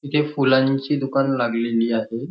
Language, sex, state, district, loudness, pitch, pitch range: Marathi, male, Maharashtra, Nagpur, -20 LUFS, 135 Hz, 115-135 Hz